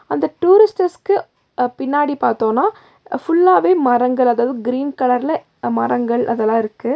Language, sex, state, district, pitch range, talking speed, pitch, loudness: Tamil, female, Tamil Nadu, Nilgiris, 240-350 Hz, 105 wpm, 255 Hz, -16 LUFS